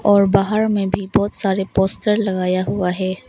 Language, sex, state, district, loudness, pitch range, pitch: Hindi, female, Arunachal Pradesh, Longding, -18 LUFS, 190-205 Hz, 195 Hz